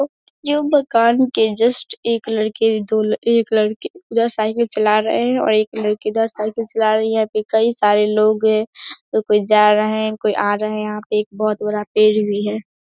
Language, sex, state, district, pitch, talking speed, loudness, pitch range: Hindi, female, Bihar, Saharsa, 215 Hz, 210 wpm, -17 LUFS, 215-230 Hz